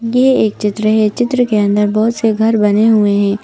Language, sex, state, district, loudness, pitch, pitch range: Hindi, female, Madhya Pradesh, Bhopal, -13 LUFS, 215 Hz, 210-230 Hz